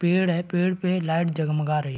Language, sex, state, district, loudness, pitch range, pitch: Hindi, male, Chhattisgarh, Raigarh, -24 LUFS, 155-180 Hz, 175 Hz